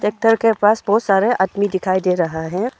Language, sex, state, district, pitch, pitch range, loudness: Hindi, female, Arunachal Pradesh, Longding, 200 Hz, 190-225 Hz, -17 LUFS